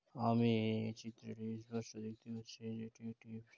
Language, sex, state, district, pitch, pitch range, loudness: Bengali, male, West Bengal, Dakshin Dinajpur, 115 Hz, 110-115 Hz, -41 LUFS